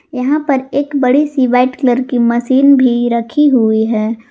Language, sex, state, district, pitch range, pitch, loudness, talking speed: Hindi, female, Jharkhand, Garhwa, 240-275 Hz, 255 Hz, -12 LUFS, 180 wpm